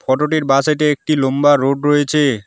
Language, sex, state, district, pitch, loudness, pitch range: Bengali, male, West Bengal, Alipurduar, 145 Hz, -15 LUFS, 135-150 Hz